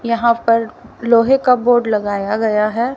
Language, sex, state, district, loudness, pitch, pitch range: Hindi, female, Haryana, Rohtak, -15 LUFS, 230 Hz, 215-240 Hz